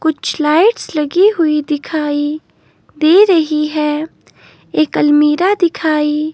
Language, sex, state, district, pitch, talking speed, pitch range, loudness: Hindi, female, Himachal Pradesh, Shimla, 310 Hz, 105 wpm, 300-335 Hz, -14 LUFS